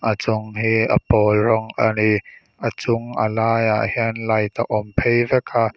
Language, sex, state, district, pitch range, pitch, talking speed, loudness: Mizo, male, Mizoram, Aizawl, 110-115 Hz, 110 Hz, 195 wpm, -19 LUFS